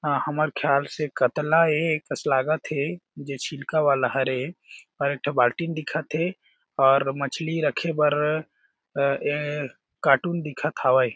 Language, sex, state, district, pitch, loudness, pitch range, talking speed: Chhattisgarhi, male, Chhattisgarh, Jashpur, 145 Hz, -24 LUFS, 140-155 Hz, 160 wpm